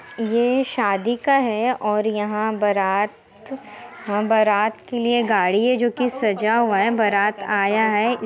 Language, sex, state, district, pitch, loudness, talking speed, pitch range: Hindi, female, Bihar, Muzaffarpur, 220 Hz, -20 LUFS, 145 wpm, 210-240 Hz